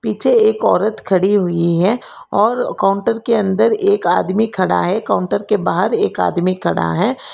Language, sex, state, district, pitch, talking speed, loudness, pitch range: Hindi, female, Karnataka, Bangalore, 195 Hz, 170 wpm, -16 LUFS, 185-230 Hz